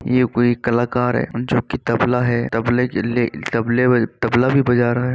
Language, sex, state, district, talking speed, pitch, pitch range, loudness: Hindi, male, Uttar Pradesh, Varanasi, 210 wpm, 120 Hz, 120-125 Hz, -18 LUFS